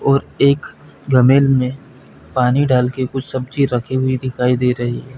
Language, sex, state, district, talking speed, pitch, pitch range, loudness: Hindi, male, Chhattisgarh, Bilaspur, 160 wpm, 130 Hz, 125-135 Hz, -16 LUFS